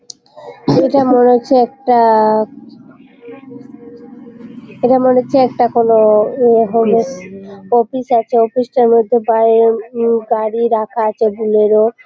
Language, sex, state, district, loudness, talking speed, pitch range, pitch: Bengali, female, West Bengal, Malda, -12 LUFS, 115 wpm, 225-250 Hz, 235 Hz